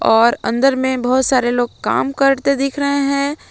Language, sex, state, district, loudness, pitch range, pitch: Hindi, female, Jharkhand, Palamu, -16 LUFS, 245-275 Hz, 270 Hz